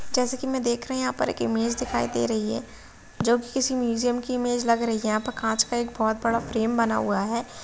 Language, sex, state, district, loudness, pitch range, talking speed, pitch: Hindi, female, Bihar, Gopalganj, -25 LUFS, 220-245 Hz, 260 wpm, 235 Hz